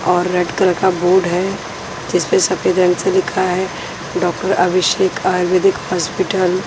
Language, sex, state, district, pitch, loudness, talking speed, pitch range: Hindi, female, Punjab, Pathankot, 185 Hz, -16 LUFS, 145 wpm, 180-190 Hz